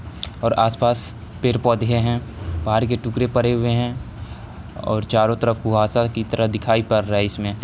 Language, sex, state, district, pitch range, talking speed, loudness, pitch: Hindi, male, Bihar, Samastipur, 105-120 Hz, 165 wpm, -20 LUFS, 115 Hz